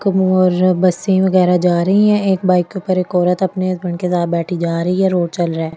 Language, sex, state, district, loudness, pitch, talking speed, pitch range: Hindi, female, Delhi, New Delhi, -15 LUFS, 180 Hz, 260 wpm, 175-190 Hz